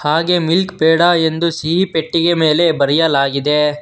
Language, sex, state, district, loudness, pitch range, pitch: Kannada, male, Karnataka, Bangalore, -14 LUFS, 150-170 Hz, 160 Hz